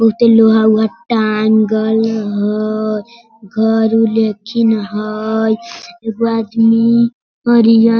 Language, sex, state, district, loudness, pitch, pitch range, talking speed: Hindi, female, Bihar, Sitamarhi, -13 LUFS, 220 Hz, 215-230 Hz, 100 wpm